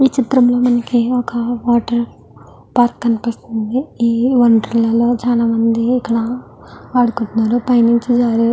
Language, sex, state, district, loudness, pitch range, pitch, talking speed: Telugu, female, Andhra Pradesh, Guntur, -15 LUFS, 230-245 Hz, 235 Hz, 140 wpm